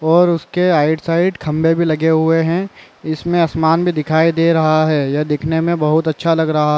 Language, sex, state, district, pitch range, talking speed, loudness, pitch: Hindi, male, Chhattisgarh, Raigarh, 155-170 Hz, 210 wpm, -15 LUFS, 160 Hz